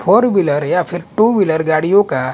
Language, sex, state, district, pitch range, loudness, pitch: Hindi, male, Punjab, Kapurthala, 155-205 Hz, -14 LUFS, 175 Hz